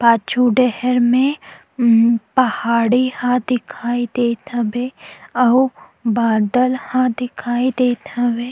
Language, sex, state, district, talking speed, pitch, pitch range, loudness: Chhattisgarhi, female, Chhattisgarh, Sukma, 100 wpm, 245 Hz, 235-255 Hz, -17 LUFS